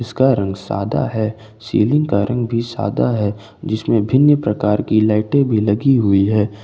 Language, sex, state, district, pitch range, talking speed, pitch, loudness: Hindi, male, Jharkhand, Ranchi, 105-120 Hz, 170 wpm, 110 Hz, -17 LUFS